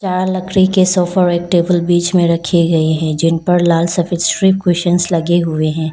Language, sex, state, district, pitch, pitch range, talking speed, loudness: Hindi, female, Arunachal Pradesh, Lower Dibang Valley, 175 Hz, 170-180 Hz, 180 wpm, -14 LUFS